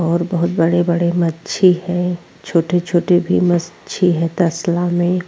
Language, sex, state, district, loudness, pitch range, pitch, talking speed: Hindi, female, Uttar Pradesh, Jyotiba Phule Nagar, -16 LUFS, 170-180 Hz, 175 Hz, 125 wpm